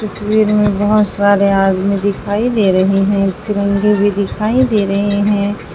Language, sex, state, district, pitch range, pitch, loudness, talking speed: Hindi, female, Uttar Pradesh, Saharanpur, 200-210 Hz, 205 Hz, -14 LUFS, 155 wpm